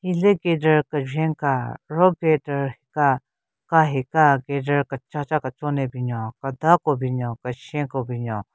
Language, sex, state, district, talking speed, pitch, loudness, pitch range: Rengma, female, Nagaland, Kohima, 140 wpm, 145 Hz, -22 LUFS, 130-155 Hz